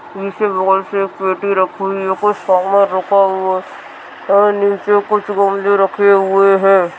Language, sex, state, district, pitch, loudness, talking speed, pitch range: Hindi, male, Rajasthan, Churu, 195 Hz, -14 LUFS, 145 wpm, 190-200 Hz